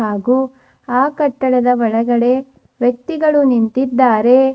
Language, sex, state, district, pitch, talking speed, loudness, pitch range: Kannada, female, Karnataka, Bidar, 255 Hz, 80 wpm, -15 LUFS, 240-265 Hz